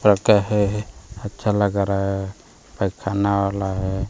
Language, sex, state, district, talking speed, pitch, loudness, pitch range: Hindi, male, Bihar, Kaimur, 115 wpm, 100 Hz, -21 LUFS, 95-105 Hz